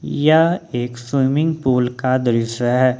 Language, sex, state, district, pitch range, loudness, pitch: Hindi, male, Jharkhand, Ranchi, 125-150 Hz, -18 LUFS, 130 Hz